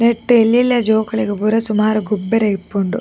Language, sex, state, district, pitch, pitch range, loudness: Tulu, female, Karnataka, Dakshina Kannada, 220 Hz, 210-230 Hz, -16 LUFS